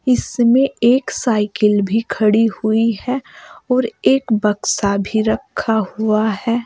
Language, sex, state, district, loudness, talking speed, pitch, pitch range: Hindi, female, Uttar Pradesh, Saharanpur, -17 LUFS, 125 wpm, 220 Hz, 210-240 Hz